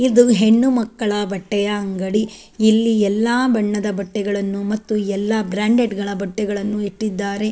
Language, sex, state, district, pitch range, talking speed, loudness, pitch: Kannada, female, Karnataka, Dakshina Kannada, 205-220 Hz, 120 wpm, -19 LUFS, 210 Hz